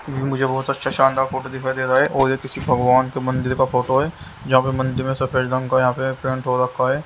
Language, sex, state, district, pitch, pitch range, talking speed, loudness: Hindi, male, Haryana, Jhajjar, 130 Hz, 130-135 Hz, 265 wpm, -20 LUFS